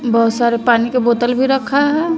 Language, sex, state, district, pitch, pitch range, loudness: Hindi, female, Bihar, West Champaran, 245 Hz, 235-270 Hz, -15 LUFS